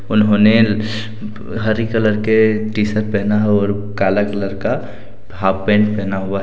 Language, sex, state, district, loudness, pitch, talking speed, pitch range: Hindi, male, Jharkhand, Deoghar, -16 LUFS, 105 Hz, 160 wpm, 100-110 Hz